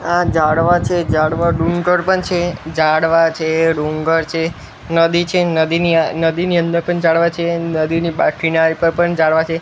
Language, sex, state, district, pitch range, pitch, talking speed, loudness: Gujarati, male, Gujarat, Gandhinagar, 160-170 Hz, 165 Hz, 160 wpm, -15 LUFS